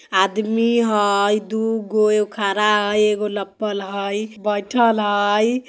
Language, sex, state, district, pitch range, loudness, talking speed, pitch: Bajjika, female, Bihar, Vaishali, 205-220 Hz, -19 LUFS, 115 wpm, 210 Hz